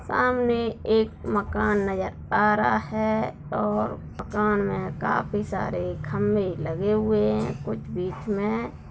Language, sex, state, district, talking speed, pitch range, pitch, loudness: Hindi, female, Bihar, Darbhanga, 135 wpm, 160-215 Hz, 205 Hz, -25 LUFS